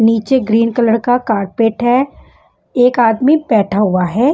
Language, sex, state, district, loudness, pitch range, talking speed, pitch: Hindi, female, Bihar, West Champaran, -13 LUFS, 220-250 Hz, 150 wpm, 230 Hz